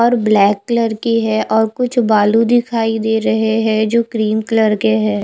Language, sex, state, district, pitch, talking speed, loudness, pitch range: Hindi, female, Odisha, Khordha, 220 Hz, 195 wpm, -15 LUFS, 215-230 Hz